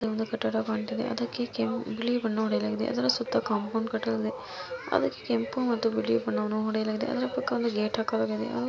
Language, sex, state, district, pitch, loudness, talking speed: Kannada, female, Karnataka, Mysore, 215 Hz, -29 LUFS, 175 wpm